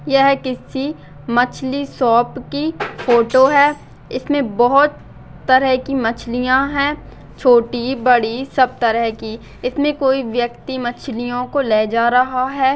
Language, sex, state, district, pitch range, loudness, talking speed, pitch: Hindi, female, Bihar, Bhagalpur, 240-275 Hz, -17 LUFS, 125 wpm, 255 Hz